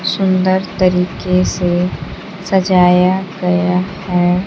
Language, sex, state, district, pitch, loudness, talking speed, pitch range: Hindi, female, Bihar, Kaimur, 185 Hz, -14 LUFS, 80 wpm, 180-190 Hz